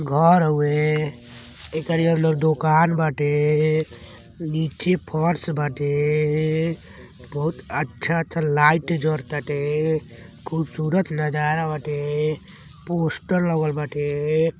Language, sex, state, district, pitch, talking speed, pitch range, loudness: Bhojpuri, male, Uttar Pradesh, Deoria, 155 Hz, 80 wpm, 145-160 Hz, -22 LUFS